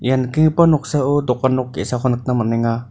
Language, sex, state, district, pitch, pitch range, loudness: Garo, male, Meghalaya, North Garo Hills, 130 Hz, 120-145 Hz, -17 LUFS